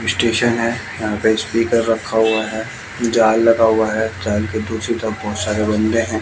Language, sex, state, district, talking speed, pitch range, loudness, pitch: Hindi, male, Bihar, West Champaran, 185 wpm, 110-115 Hz, -17 LUFS, 110 Hz